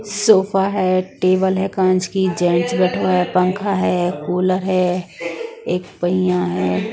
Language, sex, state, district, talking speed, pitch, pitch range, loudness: Hindi, female, Punjab, Pathankot, 155 wpm, 185 Hz, 180-190 Hz, -18 LUFS